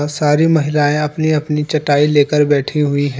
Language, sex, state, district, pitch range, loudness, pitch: Hindi, male, Jharkhand, Deoghar, 145-150 Hz, -14 LUFS, 150 Hz